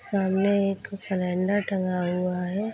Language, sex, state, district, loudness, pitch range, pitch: Hindi, female, Bihar, Darbhanga, -26 LUFS, 180-200 Hz, 190 Hz